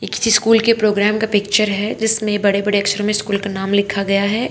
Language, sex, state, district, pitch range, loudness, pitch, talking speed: Hindi, female, Haryana, Charkhi Dadri, 200-215 Hz, -16 LUFS, 205 Hz, 240 wpm